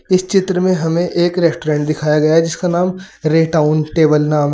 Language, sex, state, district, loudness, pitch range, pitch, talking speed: Hindi, male, Uttar Pradesh, Saharanpur, -15 LUFS, 155-180 Hz, 165 Hz, 170 wpm